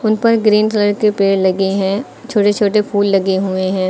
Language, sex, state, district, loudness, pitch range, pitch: Hindi, female, Uttar Pradesh, Lucknow, -14 LUFS, 190-215 Hz, 205 Hz